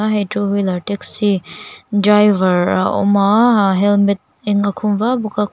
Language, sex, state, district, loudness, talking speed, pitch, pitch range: Mizo, female, Mizoram, Aizawl, -15 LUFS, 195 wpm, 205 Hz, 200-210 Hz